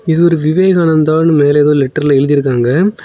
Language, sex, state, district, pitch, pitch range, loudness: Tamil, male, Tamil Nadu, Kanyakumari, 155 Hz, 145-170 Hz, -11 LUFS